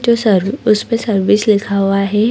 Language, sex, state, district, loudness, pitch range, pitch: Hindi, female, Bihar, Samastipur, -14 LUFS, 200-225 Hz, 210 Hz